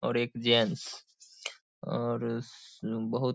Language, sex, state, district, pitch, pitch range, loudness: Hindi, male, Bihar, Saharsa, 120 Hz, 115-120 Hz, -31 LUFS